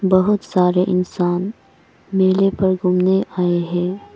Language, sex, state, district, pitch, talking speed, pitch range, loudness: Hindi, female, Arunachal Pradesh, Papum Pare, 185 Hz, 115 wpm, 180-195 Hz, -18 LUFS